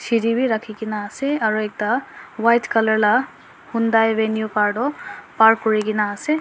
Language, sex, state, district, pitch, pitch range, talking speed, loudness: Nagamese, female, Nagaland, Dimapur, 220 Hz, 215-235 Hz, 130 wpm, -19 LUFS